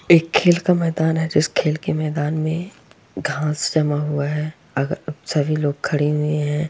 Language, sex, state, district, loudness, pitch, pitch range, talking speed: Hindi, female, Bihar, Purnia, -20 LUFS, 150 Hz, 150-160 Hz, 180 wpm